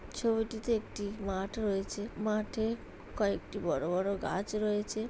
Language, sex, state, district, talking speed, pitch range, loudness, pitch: Bengali, male, West Bengal, Jhargram, 115 wpm, 200-220 Hz, -34 LUFS, 210 Hz